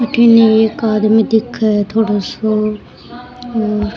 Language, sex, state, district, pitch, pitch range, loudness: Rajasthani, female, Rajasthan, Churu, 220 Hz, 215-230 Hz, -13 LUFS